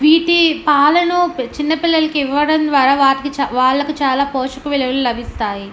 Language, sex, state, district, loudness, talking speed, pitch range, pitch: Telugu, female, Andhra Pradesh, Anantapur, -15 LUFS, 105 wpm, 265-310 Hz, 285 Hz